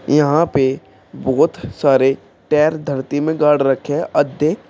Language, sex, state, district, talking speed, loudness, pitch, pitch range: Hindi, male, Uttar Pradesh, Shamli, 155 wpm, -17 LUFS, 145 Hz, 135-155 Hz